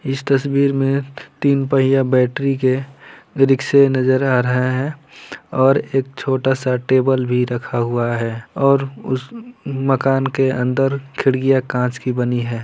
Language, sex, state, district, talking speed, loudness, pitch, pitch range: Hindi, male, Bihar, Lakhisarai, 140 wpm, -18 LUFS, 135 Hz, 125-135 Hz